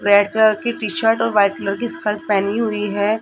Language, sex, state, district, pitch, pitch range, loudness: Hindi, female, Rajasthan, Jaipur, 210 Hz, 205-225 Hz, -18 LUFS